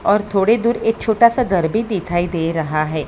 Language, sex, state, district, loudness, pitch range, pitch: Hindi, female, Maharashtra, Mumbai Suburban, -17 LUFS, 165-225 Hz, 200 Hz